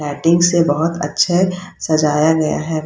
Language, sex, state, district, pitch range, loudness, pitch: Hindi, female, Bihar, Saharsa, 155-175 Hz, -15 LUFS, 160 Hz